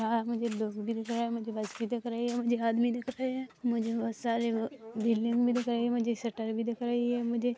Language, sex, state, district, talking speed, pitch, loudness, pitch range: Hindi, female, Chhattisgarh, Rajnandgaon, 260 wpm, 235 Hz, -32 LUFS, 230-240 Hz